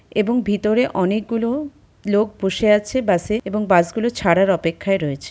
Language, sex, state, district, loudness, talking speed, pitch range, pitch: Bengali, female, West Bengal, Purulia, -19 LUFS, 170 wpm, 190-225 Hz, 210 Hz